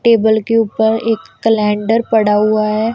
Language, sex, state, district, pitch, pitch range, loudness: Hindi, female, Punjab, Kapurthala, 220 Hz, 215-225 Hz, -14 LUFS